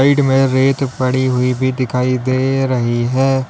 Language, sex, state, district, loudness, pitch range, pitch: Hindi, male, Uttar Pradesh, Lalitpur, -15 LUFS, 125-135 Hz, 130 Hz